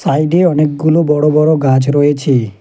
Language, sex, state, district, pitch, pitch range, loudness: Bengali, male, West Bengal, Alipurduar, 150 Hz, 140-155 Hz, -12 LUFS